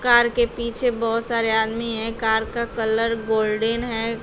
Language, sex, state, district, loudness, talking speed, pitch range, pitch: Hindi, female, Uttar Pradesh, Shamli, -21 LUFS, 170 wpm, 225-235 Hz, 230 Hz